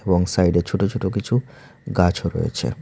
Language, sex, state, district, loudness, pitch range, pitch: Bengali, male, Tripura, Unakoti, -21 LUFS, 90-120 Hz, 95 Hz